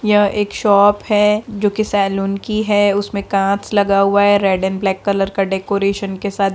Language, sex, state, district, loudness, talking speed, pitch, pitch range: Hindi, female, Bihar, Darbhanga, -16 LUFS, 200 wpm, 200 Hz, 195-205 Hz